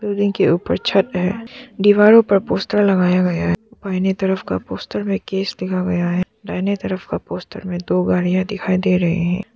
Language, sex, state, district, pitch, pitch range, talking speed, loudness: Hindi, female, Arunachal Pradesh, Papum Pare, 190 Hz, 180-205 Hz, 190 wpm, -18 LUFS